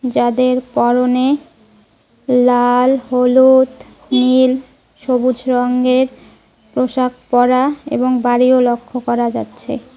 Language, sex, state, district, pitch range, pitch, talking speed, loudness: Bengali, female, West Bengal, Cooch Behar, 250-260 Hz, 255 Hz, 85 wpm, -14 LUFS